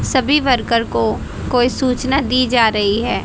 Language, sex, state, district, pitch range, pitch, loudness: Hindi, female, Haryana, Rohtak, 205-255 Hz, 245 Hz, -16 LUFS